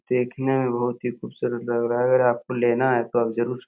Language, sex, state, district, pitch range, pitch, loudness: Hindi, male, Bihar, Supaul, 120-125 Hz, 120 Hz, -23 LUFS